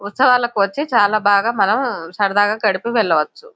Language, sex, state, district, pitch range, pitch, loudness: Telugu, female, Telangana, Nalgonda, 200-240 Hz, 210 Hz, -16 LUFS